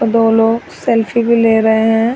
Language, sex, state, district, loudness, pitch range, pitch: Hindi, female, Chhattisgarh, Raigarh, -13 LUFS, 225-235 Hz, 225 Hz